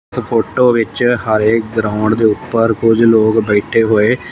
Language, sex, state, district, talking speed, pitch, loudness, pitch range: Punjabi, male, Punjab, Fazilka, 140 wpm, 110 Hz, -13 LUFS, 110-115 Hz